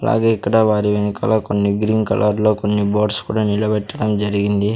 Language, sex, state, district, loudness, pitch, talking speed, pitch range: Telugu, male, Andhra Pradesh, Sri Satya Sai, -17 LUFS, 105 Hz, 150 wpm, 105-110 Hz